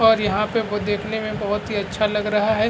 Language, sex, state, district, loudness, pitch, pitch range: Hindi, male, Bihar, Araria, -22 LUFS, 210 Hz, 205-220 Hz